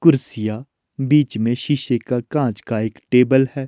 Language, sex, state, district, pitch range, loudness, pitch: Hindi, male, Himachal Pradesh, Shimla, 110-140 Hz, -19 LUFS, 125 Hz